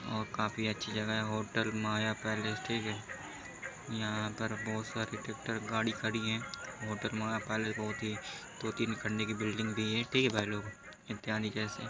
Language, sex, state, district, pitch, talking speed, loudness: Hindi, male, Uttar Pradesh, Etah, 110 Hz, 170 wpm, -36 LUFS